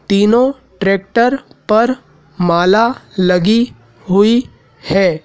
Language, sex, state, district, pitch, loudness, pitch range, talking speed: Hindi, male, Madhya Pradesh, Dhar, 200 Hz, -14 LUFS, 180-235 Hz, 80 wpm